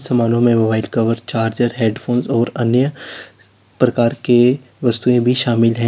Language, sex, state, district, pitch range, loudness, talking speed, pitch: Hindi, male, Uttar Pradesh, Lalitpur, 115-125 Hz, -16 LUFS, 155 wpm, 120 Hz